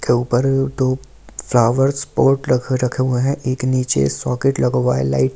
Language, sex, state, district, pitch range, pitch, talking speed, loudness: Hindi, male, Delhi, New Delhi, 120-135 Hz, 130 Hz, 180 wpm, -18 LUFS